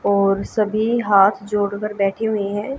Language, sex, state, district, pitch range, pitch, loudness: Hindi, female, Haryana, Jhajjar, 200-215 Hz, 205 Hz, -19 LUFS